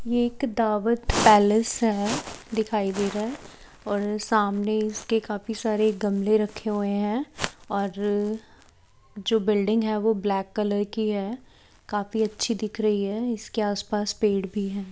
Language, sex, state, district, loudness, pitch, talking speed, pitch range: Hindi, female, Haryana, Charkhi Dadri, -25 LUFS, 210 Hz, 155 wpm, 205-220 Hz